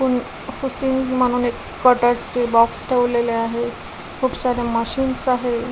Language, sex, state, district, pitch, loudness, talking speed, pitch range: Marathi, female, Maharashtra, Washim, 245 Hz, -20 LUFS, 135 wpm, 235-260 Hz